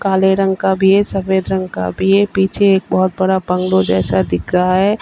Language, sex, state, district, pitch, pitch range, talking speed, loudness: Hindi, female, Uttar Pradesh, Varanasi, 190 Hz, 180-195 Hz, 225 wpm, -15 LUFS